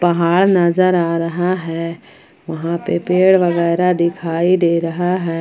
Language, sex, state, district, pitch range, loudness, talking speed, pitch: Hindi, female, Jharkhand, Ranchi, 170-180 Hz, -16 LUFS, 145 wpm, 170 Hz